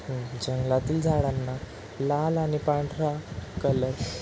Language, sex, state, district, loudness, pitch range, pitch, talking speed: Marathi, male, Maharashtra, Chandrapur, -28 LUFS, 130-150 Hz, 135 Hz, 115 wpm